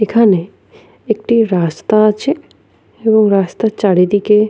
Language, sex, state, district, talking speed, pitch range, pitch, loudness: Bengali, female, West Bengal, Paschim Medinipur, 95 wpm, 195-220 Hz, 215 Hz, -13 LUFS